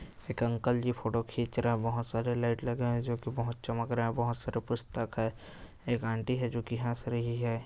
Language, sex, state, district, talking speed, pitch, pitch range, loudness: Hindi, male, Uttar Pradesh, Hamirpur, 235 wpm, 120 Hz, 115-120 Hz, -33 LUFS